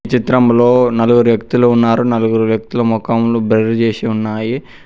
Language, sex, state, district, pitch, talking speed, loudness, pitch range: Telugu, male, Telangana, Mahabubabad, 115 Hz, 135 wpm, -13 LUFS, 110-120 Hz